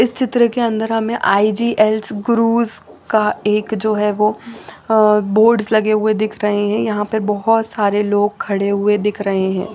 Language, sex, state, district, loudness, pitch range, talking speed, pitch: Hindi, female, Chandigarh, Chandigarh, -16 LUFS, 210-225 Hz, 170 wpm, 215 Hz